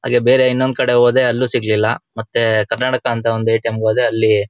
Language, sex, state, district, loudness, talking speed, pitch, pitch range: Kannada, male, Karnataka, Shimoga, -15 LUFS, 215 wpm, 115 Hz, 110-125 Hz